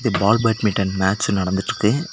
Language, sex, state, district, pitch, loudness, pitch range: Tamil, male, Tamil Nadu, Nilgiris, 105 Hz, -19 LUFS, 95-115 Hz